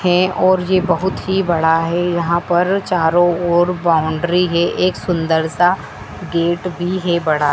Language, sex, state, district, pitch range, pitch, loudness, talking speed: Hindi, female, Madhya Pradesh, Dhar, 165-180 Hz, 175 Hz, -16 LUFS, 160 wpm